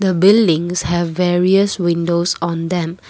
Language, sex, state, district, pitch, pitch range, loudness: English, female, Assam, Kamrup Metropolitan, 175 Hz, 170-185 Hz, -16 LUFS